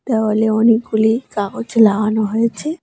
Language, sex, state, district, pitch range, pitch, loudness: Bengali, female, West Bengal, Alipurduar, 215-230 Hz, 220 Hz, -16 LUFS